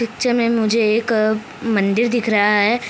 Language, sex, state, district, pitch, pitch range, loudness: Hindi, female, Bihar, Kishanganj, 225 Hz, 215-235 Hz, -17 LUFS